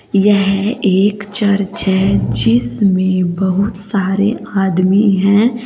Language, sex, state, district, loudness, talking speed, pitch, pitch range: Hindi, female, Uttar Pradesh, Saharanpur, -14 LUFS, 95 wpm, 195 Hz, 190-205 Hz